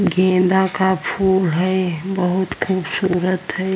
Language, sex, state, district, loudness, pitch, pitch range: Hindi, female, Uttar Pradesh, Jyotiba Phule Nagar, -18 LUFS, 185 Hz, 180-190 Hz